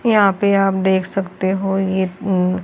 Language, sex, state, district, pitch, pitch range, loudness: Hindi, female, Haryana, Charkhi Dadri, 190 Hz, 185-195 Hz, -17 LUFS